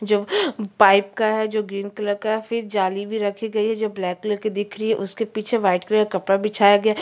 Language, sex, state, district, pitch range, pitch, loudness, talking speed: Hindi, female, Chhattisgarh, Kabirdham, 200-220 Hz, 210 Hz, -21 LUFS, 275 wpm